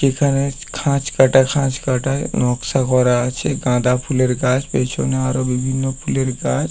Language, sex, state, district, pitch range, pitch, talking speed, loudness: Bengali, male, West Bengal, Paschim Medinipur, 125-135 Hz, 130 Hz, 145 wpm, -18 LUFS